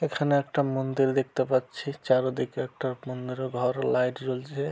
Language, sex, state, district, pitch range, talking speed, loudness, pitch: Bengali, male, West Bengal, Malda, 130-140 Hz, 140 wpm, -28 LUFS, 130 Hz